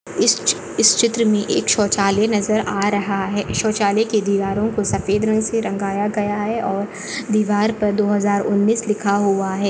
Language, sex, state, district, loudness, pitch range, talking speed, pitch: Hindi, female, Maharashtra, Nagpur, -18 LUFS, 200-215 Hz, 175 wpm, 205 Hz